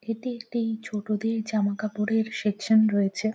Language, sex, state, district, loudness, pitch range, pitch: Bengali, female, West Bengal, Jhargram, -26 LUFS, 210-225 Hz, 220 Hz